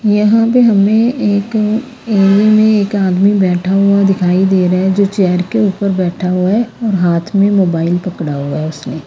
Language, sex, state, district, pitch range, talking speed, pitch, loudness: Hindi, female, Haryana, Rohtak, 180-210 Hz, 185 wpm, 195 Hz, -12 LUFS